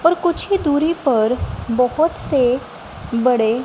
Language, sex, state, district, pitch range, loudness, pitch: Hindi, female, Punjab, Kapurthala, 240-330 Hz, -18 LUFS, 265 Hz